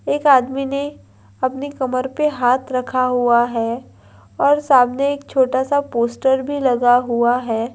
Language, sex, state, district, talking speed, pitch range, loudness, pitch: Hindi, female, Andhra Pradesh, Anantapur, 155 wpm, 235-275 Hz, -18 LUFS, 255 Hz